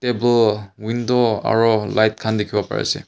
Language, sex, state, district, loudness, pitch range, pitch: Nagamese, male, Nagaland, Kohima, -19 LUFS, 105-120 Hz, 110 Hz